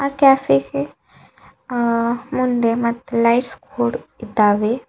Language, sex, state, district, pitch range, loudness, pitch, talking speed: Kannada, female, Karnataka, Bidar, 230-255 Hz, -18 LUFS, 235 Hz, 75 wpm